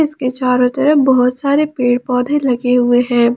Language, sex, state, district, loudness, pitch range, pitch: Hindi, female, Jharkhand, Ranchi, -14 LUFS, 245-275 Hz, 250 Hz